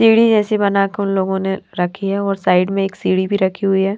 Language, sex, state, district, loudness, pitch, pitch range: Hindi, female, Maharashtra, Mumbai Suburban, -17 LUFS, 195 Hz, 190-200 Hz